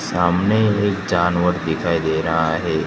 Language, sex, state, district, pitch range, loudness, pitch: Hindi, male, Gujarat, Gandhinagar, 80-95 Hz, -19 LUFS, 85 Hz